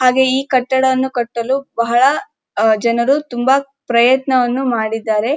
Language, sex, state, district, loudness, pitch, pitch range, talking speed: Kannada, female, Karnataka, Dharwad, -15 LUFS, 255 Hz, 235-270 Hz, 110 wpm